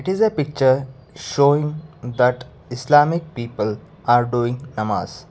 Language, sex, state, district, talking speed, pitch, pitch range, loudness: English, male, Karnataka, Bangalore, 115 wpm, 135 Hz, 120-150 Hz, -19 LUFS